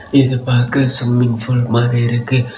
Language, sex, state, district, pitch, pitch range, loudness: Tamil, male, Tamil Nadu, Kanyakumari, 125 Hz, 120-130 Hz, -14 LUFS